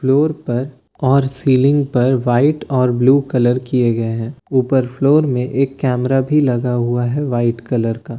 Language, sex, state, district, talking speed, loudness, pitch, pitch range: Hindi, male, Bihar, Katihar, 175 wpm, -16 LUFS, 130 Hz, 120-140 Hz